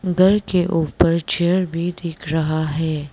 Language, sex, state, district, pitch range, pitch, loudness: Hindi, female, Arunachal Pradesh, Lower Dibang Valley, 160-180 Hz, 170 Hz, -19 LUFS